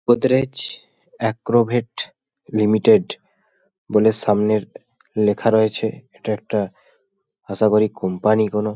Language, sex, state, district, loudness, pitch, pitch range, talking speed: Bengali, male, West Bengal, Paschim Medinipur, -19 LUFS, 110 Hz, 105-130 Hz, 80 wpm